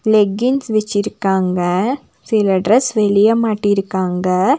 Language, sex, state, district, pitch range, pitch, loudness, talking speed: Tamil, female, Tamil Nadu, Nilgiris, 190-225 Hz, 205 Hz, -16 LUFS, 80 wpm